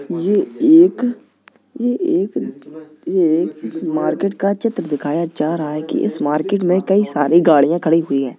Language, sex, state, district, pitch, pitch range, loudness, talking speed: Hindi, male, Uttar Pradesh, Jalaun, 175 Hz, 155-240 Hz, -17 LUFS, 165 wpm